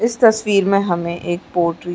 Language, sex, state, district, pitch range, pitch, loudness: Hindi, female, Chhattisgarh, Sarguja, 175-210 Hz, 180 Hz, -17 LUFS